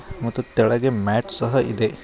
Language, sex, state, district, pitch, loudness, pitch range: Kannada, male, Karnataka, Koppal, 120 Hz, -19 LUFS, 110-125 Hz